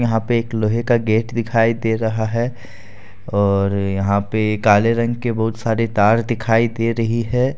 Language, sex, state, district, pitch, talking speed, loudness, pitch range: Hindi, male, Jharkhand, Deoghar, 115 Hz, 180 wpm, -18 LUFS, 105-115 Hz